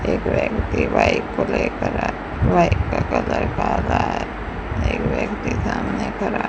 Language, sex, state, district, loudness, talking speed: Hindi, female, Rajasthan, Bikaner, -21 LUFS, 150 wpm